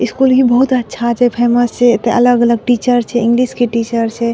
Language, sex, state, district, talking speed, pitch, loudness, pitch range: Maithili, female, Bihar, Madhepura, 205 wpm, 240 Hz, -13 LUFS, 235-245 Hz